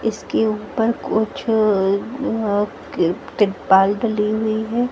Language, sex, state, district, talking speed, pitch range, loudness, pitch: Hindi, female, Haryana, Jhajjar, 120 wpm, 205-225 Hz, -19 LUFS, 215 Hz